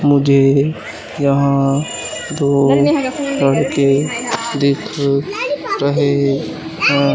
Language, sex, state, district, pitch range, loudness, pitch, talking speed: Hindi, male, Madhya Pradesh, Katni, 140-155 Hz, -16 LUFS, 140 Hz, 60 wpm